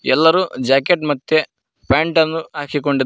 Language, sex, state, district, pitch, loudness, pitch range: Kannada, male, Karnataka, Koppal, 155 Hz, -17 LUFS, 145-160 Hz